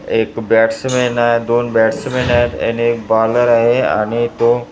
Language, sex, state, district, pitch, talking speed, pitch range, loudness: Marathi, male, Maharashtra, Gondia, 120 Hz, 150 wpm, 115-120 Hz, -14 LUFS